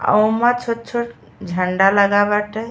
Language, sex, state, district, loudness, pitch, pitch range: Bhojpuri, female, Uttar Pradesh, Ghazipur, -17 LUFS, 210 Hz, 200-235 Hz